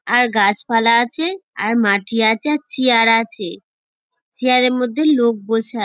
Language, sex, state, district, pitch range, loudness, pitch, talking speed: Bengali, female, West Bengal, Dakshin Dinajpur, 220-255 Hz, -16 LUFS, 235 Hz, 165 wpm